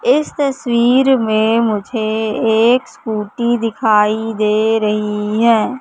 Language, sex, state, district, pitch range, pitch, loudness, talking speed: Hindi, female, Madhya Pradesh, Katni, 215-240 Hz, 225 Hz, -15 LUFS, 105 wpm